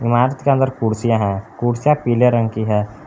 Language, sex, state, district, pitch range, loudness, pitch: Hindi, male, Jharkhand, Palamu, 110-130 Hz, -17 LUFS, 120 Hz